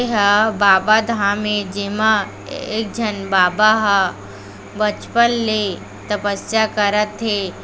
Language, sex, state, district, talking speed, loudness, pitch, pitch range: Chhattisgarhi, female, Chhattisgarh, Raigarh, 110 wpm, -17 LUFS, 210 Hz, 200-220 Hz